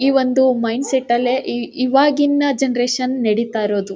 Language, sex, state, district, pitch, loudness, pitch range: Kannada, female, Karnataka, Mysore, 255 Hz, -17 LUFS, 235-270 Hz